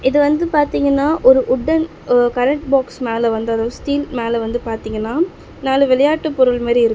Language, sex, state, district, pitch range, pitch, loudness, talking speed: Tamil, female, Tamil Nadu, Chennai, 235-290 Hz, 260 Hz, -16 LUFS, 175 wpm